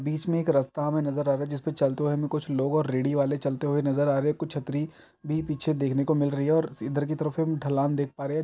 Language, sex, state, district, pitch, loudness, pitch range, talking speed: Hindi, male, Chhattisgarh, Bilaspur, 145 Hz, -27 LUFS, 140-155 Hz, 315 wpm